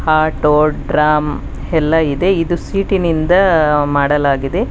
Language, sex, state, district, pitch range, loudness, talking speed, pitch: Kannada, female, Karnataka, Bangalore, 150-170 Hz, -14 LUFS, 90 wpm, 155 Hz